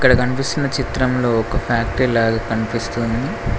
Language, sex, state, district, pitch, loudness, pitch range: Telugu, male, Telangana, Mahabubabad, 120 Hz, -19 LUFS, 115-130 Hz